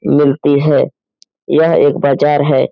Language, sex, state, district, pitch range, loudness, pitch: Hindi, male, Bihar, Lakhisarai, 140-150 Hz, -12 LUFS, 145 Hz